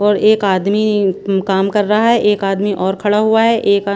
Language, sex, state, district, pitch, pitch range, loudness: Hindi, female, Punjab, Pathankot, 205 Hz, 195-215 Hz, -14 LUFS